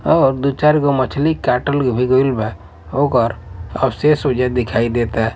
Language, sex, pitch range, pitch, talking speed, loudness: Bhojpuri, male, 115-140 Hz, 125 Hz, 190 wpm, -16 LUFS